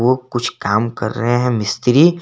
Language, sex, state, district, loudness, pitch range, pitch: Hindi, male, Jharkhand, Garhwa, -17 LUFS, 115-125 Hz, 120 Hz